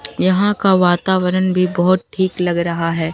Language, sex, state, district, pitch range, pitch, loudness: Hindi, female, Bihar, Katihar, 175-185 Hz, 185 Hz, -16 LUFS